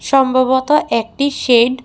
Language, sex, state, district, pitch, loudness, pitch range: Bengali, female, Tripura, West Tripura, 260 Hz, -14 LUFS, 245-275 Hz